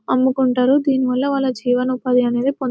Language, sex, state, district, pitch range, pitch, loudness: Telugu, female, Telangana, Nalgonda, 250-265 Hz, 255 Hz, -18 LUFS